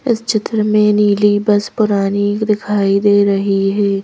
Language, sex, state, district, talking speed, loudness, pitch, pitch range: Hindi, female, Madhya Pradesh, Bhopal, 150 wpm, -14 LUFS, 205 Hz, 200-210 Hz